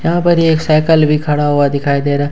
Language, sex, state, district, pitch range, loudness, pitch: Hindi, male, Jharkhand, Ranchi, 145-160 Hz, -12 LUFS, 150 Hz